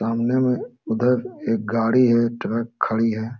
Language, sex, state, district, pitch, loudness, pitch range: Hindi, male, Jharkhand, Sahebganj, 115 Hz, -21 LUFS, 115-125 Hz